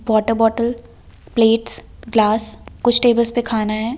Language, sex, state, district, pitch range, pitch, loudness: Hindi, female, Delhi, New Delhi, 220-235 Hz, 225 Hz, -17 LUFS